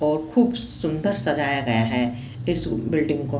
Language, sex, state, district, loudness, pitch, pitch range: Hindi, female, Chhattisgarh, Bastar, -23 LUFS, 150 Hz, 125-160 Hz